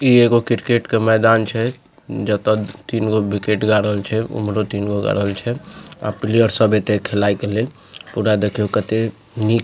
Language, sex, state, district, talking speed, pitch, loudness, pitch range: Maithili, male, Bihar, Supaul, 175 wpm, 110 Hz, -18 LUFS, 105-115 Hz